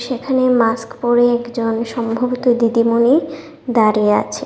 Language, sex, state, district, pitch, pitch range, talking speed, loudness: Bengali, female, Tripura, West Tripura, 240 Hz, 230-250 Hz, 105 wpm, -16 LUFS